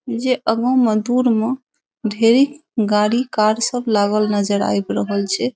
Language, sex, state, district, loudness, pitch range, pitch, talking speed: Maithili, female, Bihar, Saharsa, -18 LUFS, 205-250 Hz, 225 Hz, 160 wpm